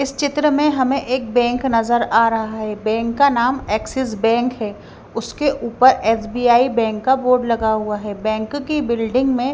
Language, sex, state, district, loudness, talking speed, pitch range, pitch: Hindi, female, Bihar, Patna, -18 LUFS, 185 wpm, 225-265 Hz, 240 Hz